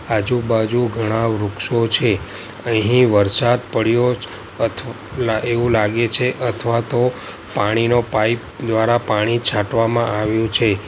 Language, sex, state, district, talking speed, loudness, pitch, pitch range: Gujarati, male, Gujarat, Valsad, 115 wpm, -18 LUFS, 115 Hz, 110-120 Hz